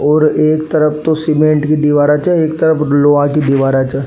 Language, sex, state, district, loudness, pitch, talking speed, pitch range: Rajasthani, male, Rajasthan, Nagaur, -12 LUFS, 150 Hz, 220 wpm, 145-155 Hz